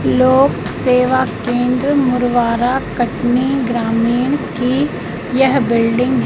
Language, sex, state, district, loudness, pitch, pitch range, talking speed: Hindi, female, Madhya Pradesh, Katni, -15 LUFS, 250 Hz, 240-260 Hz, 95 wpm